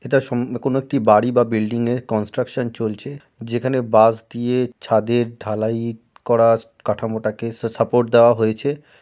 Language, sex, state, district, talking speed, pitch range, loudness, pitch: Bengali, male, West Bengal, Jalpaiguri, 145 wpm, 110-125 Hz, -19 LUFS, 120 Hz